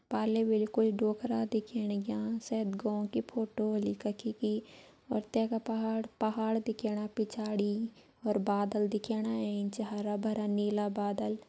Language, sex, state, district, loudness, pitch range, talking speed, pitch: Garhwali, female, Uttarakhand, Uttarkashi, -34 LUFS, 210-225 Hz, 135 wpm, 220 Hz